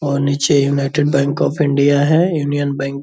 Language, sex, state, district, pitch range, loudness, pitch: Hindi, male, Bihar, Purnia, 140-145 Hz, -15 LUFS, 140 Hz